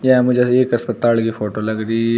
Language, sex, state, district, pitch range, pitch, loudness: Hindi, male, Uttar Pradesh, Shamli, 115-125 Hz, 115 Hz, -17 LUFS